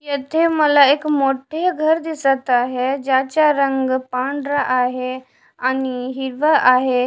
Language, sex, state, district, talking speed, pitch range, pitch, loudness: Marathi, female, Maharashtra, Washim, 120 wpm, 255-295 Hz, 270 Hz, -18 LUFS